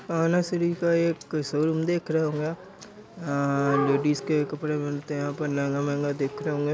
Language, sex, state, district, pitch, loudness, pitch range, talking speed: Hindi, male, Uttar Pradesh, Deoria, 150 Hz, -26 LUFS, 145-165 Hz, 195 wpm